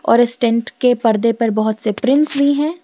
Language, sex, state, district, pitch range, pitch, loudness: Hindi, female, Jharkhand, Garhwa, 230-280 Hz, 235 Hz, -16 LUFS